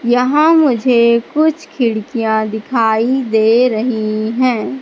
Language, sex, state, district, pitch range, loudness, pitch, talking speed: Hindi, female, Madhya Pradesh, Katni, 220-255 Hz, -14 LUFS, 235 Hz, 100 wpm